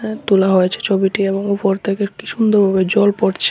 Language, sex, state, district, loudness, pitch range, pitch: Bengali, male, Tripura, West Tripura, -16 LUFS, 195-210 Hz, 200 Hz